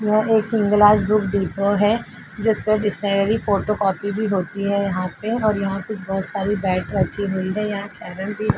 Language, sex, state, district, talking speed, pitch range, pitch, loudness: Hindi, female, Uttar Pradesh, Jalaun, 160 wpm, 195-210 Hz, 205 Hz, -20 LUFS